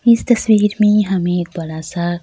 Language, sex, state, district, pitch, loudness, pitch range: Hindi, female, Bihar, Kishanganj, 190 Hz, -16 LUFS, 175-210 Hz